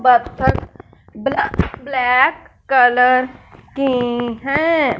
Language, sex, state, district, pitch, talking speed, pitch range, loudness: Hindi, male, Punjab, Fazilka, 255 Hz, 70 wpm, 245-280 Hz, -17 LUFS